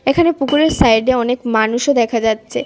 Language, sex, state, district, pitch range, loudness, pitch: Bengali, female, Tripura, West Tripura, 225-275 Hz, -15 LUFS, 245 Hz